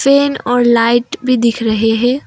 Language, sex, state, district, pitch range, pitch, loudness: Hindi, female, Assam, Kamrup Metropolitan, 230-275 Hz, 245 Hz, -13 LUFS